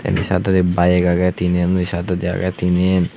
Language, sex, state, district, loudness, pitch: Chakma, male, Tripura, Unakoti, -17 LUFS, 90 Hz